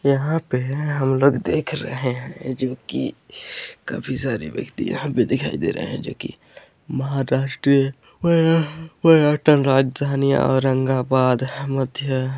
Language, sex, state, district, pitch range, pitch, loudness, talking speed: Hindi, male, Chhattisgarh, Raigarh, 130-155 Hz, 140 Hz, -21 LUFS, 120 wpm